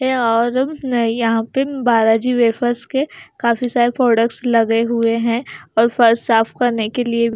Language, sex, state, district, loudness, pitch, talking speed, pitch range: Hindi, female, Bihar, Katihar, -17 LUFS, 235 Hz, 155 wpm, 230-245 Hz